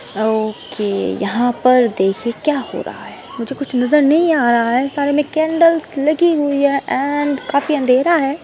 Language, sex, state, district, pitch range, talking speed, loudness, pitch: Hindi, female, Uttar Pradesh, Hamirpur, 240-300 Hz, 180 wpm, -16 LUFS, 275 Hz